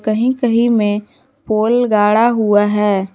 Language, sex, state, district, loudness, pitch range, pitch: Hindi, female, Jharkhand, Garhwa, -14 LUFS, 205-235 Hz, 215 Hz